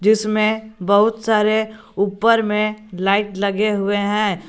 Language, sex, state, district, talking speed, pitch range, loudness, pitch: Hindi, male, Jharkhand, Garhwa, 120 wpm, 200-215 Hz, -18 LUFS, 210 Hz